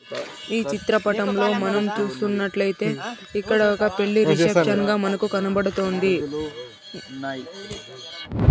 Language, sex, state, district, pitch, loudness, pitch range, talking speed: Telugu, male, Andhra Pradesh, Sri Satya Sai, 205 Hz, -22 LUFS, 195-210 Hz, 75 wpm